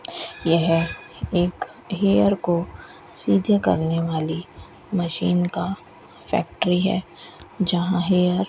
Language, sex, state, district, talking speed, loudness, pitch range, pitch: Hindi, female, Rajasthan, Bikaner, 100 wpm, -22 LUFS, 170-190 Hz, 180 Hz